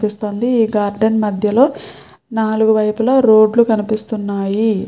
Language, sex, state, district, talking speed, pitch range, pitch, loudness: Telugu, female, Andhra Pradesh, Srikakulam, 100 wpm, 210-225 Hz, 220 Hz, -15 LUFS